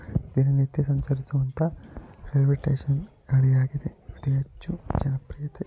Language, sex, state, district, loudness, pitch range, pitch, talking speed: Kannada, male, Karnataka, Shimoga, -26 LUFS, 135-145 Hz, 140 Hz, 95 wpm